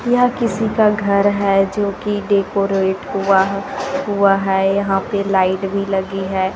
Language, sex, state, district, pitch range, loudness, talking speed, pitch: Hindi, female, Chhattisgarh, Raipur, 195-205 Hz, -17 LUFS, 165 wpm, 200 Hz